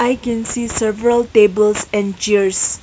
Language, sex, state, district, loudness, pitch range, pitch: English, female, Nagaland, Kohima, -16 LUFS, 210-240 Hz, 215 Hz